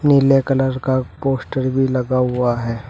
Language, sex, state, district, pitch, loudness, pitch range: Hindi, male, Uttar Pradesh, Shamli, 130 Hz, -18 LUFS, 125-135 Hz